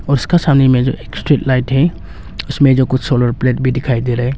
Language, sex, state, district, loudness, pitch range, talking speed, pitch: Hindi, male, Arunachal Pradesh, Longding, -14 LUFS, 125-140 Hz, 245 wpm, 130 Hz